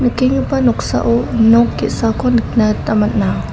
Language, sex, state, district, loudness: Garo, female, Meghalaya, South Garo Hills, -14 LUFS